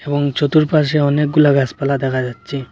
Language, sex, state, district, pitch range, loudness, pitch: Bengali, male, Assam, Hailakandi, 135-150 Hz, -16 LUFS, 145 Hz